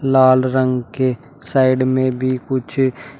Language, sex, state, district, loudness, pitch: Hindi, male, Uttar Pradesh, Shamli, -17 LUFS, 130 Hz